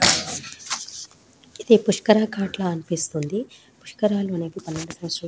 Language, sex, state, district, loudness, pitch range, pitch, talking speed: Telugu, female, Telangana, Nalgonda, -23 LUFS, 165-210 Hz, 190 Hz, 90 wpm